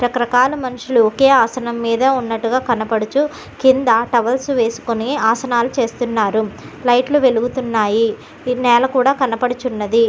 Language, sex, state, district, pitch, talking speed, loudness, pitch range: Telugu, female, Andhra Pradesh, Guntur, 245 Hz, 100 wpm, -16 LUFS, 230-260 Hz